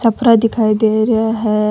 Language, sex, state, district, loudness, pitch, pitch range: Rajasthani, female, Rajasthan, Churu, -14 LUFS, 220 Hz, 215-230 Hz